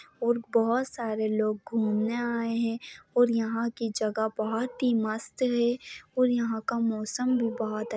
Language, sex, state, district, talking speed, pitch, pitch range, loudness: Hindi, female, Jharkhand, Jamtara, 165 wpm, 230 Hz, 220-240 Hz, -28 LUFS